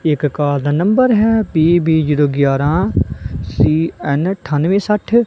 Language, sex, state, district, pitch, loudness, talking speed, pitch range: Punjabi, male, Punjab, Kapurthala, 160 Hz, -15 LUFS, 125 wpm, 145-195 Hz